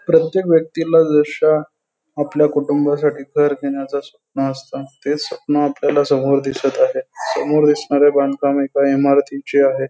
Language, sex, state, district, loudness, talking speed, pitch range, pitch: Marathi, male, Maharashtra, Pune, -17 LUFS, 125 wpm, 140-150 Hz, 145 Hz